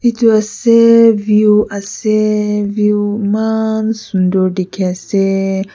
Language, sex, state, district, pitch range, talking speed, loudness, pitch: Nagamese, female, Nagaland, Kohima, 195-220 Hz, 95 wpm, -13 LUFS, 210 Hz